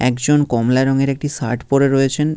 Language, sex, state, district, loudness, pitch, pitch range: Bengali, male, West Bengal, Jhargram, -16 LUFS, 135 Hz, 125-145 Hz